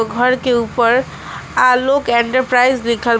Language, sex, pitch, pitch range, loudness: Bhojpuri, female, 245 Hz, 235-255 Hz, -14 LUFS